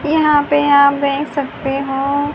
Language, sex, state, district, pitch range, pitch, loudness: Hindi, female, Haryana, Charkhi Dadri, 280-290 Hz, 285 Hz, -15 LUFS